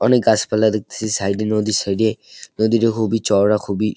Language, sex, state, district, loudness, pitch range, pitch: Bengali, male, West Bengal, Jalpaiguri, -18 LUFS, 105-110 Hz, 110 Hz